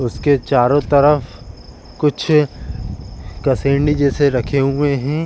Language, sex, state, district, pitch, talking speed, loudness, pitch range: Hindi, male, Chhattisgarh, Bilaspur, 135 Hz, 100 wpm, -16 LUFS, 105-145 Hz